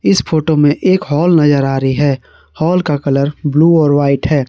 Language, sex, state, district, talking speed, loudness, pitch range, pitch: Hindi, male, Jharkhand, Garhwa, 215 wpm, -12 LUFS, 140-160 Hz, 145 Hz